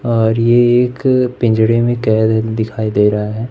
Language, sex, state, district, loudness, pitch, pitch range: Hindi, male, Madhya Pradesh, Umaria, -14 LUFS, 115 Hz, 110-120 Hz